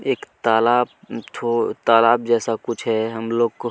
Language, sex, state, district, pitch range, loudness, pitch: Hindi, male, Chhattisgarh, Kabirdham, 115-120 Hz, -20 LUFS, 115 Hz